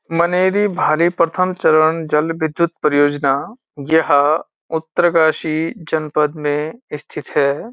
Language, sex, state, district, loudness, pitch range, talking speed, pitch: Hindi, male, Uttarakhand, Uttarkashi, -17 LUFS, 150-170 Hz, 100 wpm, 160 Hz